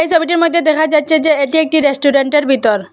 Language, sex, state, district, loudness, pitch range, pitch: Bengali, female, Assam, Hailakandi, -12 LUFS, 275-320 Hz, 310 Hz